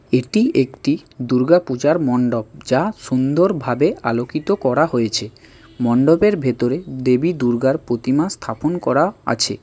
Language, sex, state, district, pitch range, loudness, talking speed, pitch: Bengali, male, West Bengal, Cooch Behar, 120-160 Hz, -18 LUFS, 110 wpm, 130 Hz